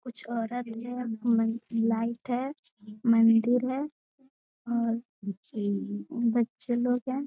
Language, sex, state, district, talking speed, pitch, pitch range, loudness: Hindi, female, Bihar, Jamui, 100 wpm, 235 Hz, 225-250 Hz, -29 LUFS